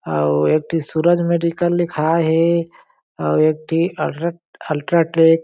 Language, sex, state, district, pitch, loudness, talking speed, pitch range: Chhattisgarhi, male, Chhattisgarh, Jashpur, 165 Hz, -18 LUFS, 155 wpm, 155-170 Hz